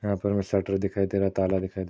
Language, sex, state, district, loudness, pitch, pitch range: Hindi, male, Maharashtra, Chandrapur, -26 LUFS, 100 Hz, 95-100 Hz